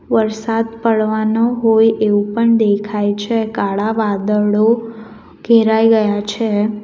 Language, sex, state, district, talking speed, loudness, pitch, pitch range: Gujarati, female, Gujarat, Valsad, 105 wpm, -15 LUFS, 220 Hz, 210-225 Hz